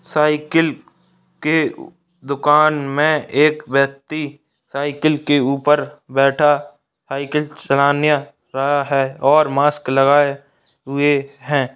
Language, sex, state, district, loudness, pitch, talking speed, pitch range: Hindi, male, Bihar, Saran, -17 LUFS, 145 Hz, 95 wpm, 140-150 Hz